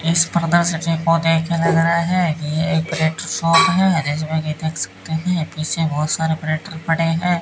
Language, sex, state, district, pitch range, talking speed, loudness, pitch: Hindi, male, Rajasthan, Bikaner, 160-170 Hz, 195 wpm, -18 LUFS, 165 Hz